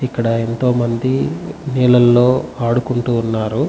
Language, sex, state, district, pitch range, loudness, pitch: Telugu, male, Andhra Pradesh, Chittoor, 115-130 Hz, -16 LUFS, 120 Hz